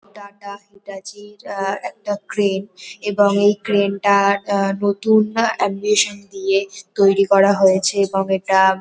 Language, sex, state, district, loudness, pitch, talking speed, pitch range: Bengali, female, West Bengal, North 24 Parganas, -17 LUFS, 200 Hz, 135 wpm, 195-205 Hz